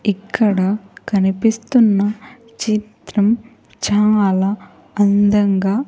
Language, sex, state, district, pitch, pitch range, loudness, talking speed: Telugu, female, Andhra Pradesh, Sri Satya Sai, 210 Hz, 200-225 Hz, -17 LUFS, 50 wpm